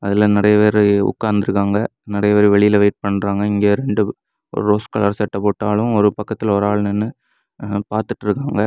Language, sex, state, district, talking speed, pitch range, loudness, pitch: Tamil, male, Tamil Nadu, Kanyakumari, 165 wpm, 100-105 Hz, -17 LUFS, 105 Hz